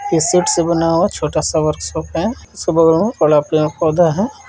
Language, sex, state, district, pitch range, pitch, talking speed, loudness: Hindi, male, Bihar, Purnia, 155-175 Hz, 165 Hz, 200 wpm, -15 LUFS